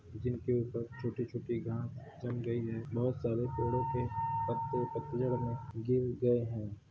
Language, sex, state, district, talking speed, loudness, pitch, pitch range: Hindi, male, Uttar Pradesh, Hamirpur, 145 wpm, -36 LUFS, 120 Hz, 115-125 Hz